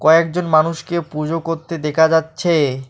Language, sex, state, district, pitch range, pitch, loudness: Bengali, male, West Bengal, Alipurduar, 155-165 Hz, 160 Hz, -17 LUFS